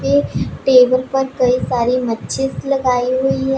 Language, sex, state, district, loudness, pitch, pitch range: Hindi, female, Punjab, Pathankot, -16 LUFS, 255 Hz, 245-265 Hz